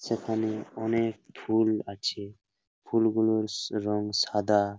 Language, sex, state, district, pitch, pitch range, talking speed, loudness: Bengali, male, West Bengal, Paschim Medinipur, 110 Hz, 105-110 Hz, 100 wpm, -28 LUFS